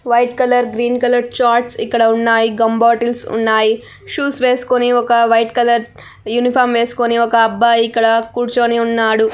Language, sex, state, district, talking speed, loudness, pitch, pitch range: Telugu, female, Andhra Pradesh, Anantapur, 150 wpm, -14 LUFS, 235 Hz, 230-245 Hz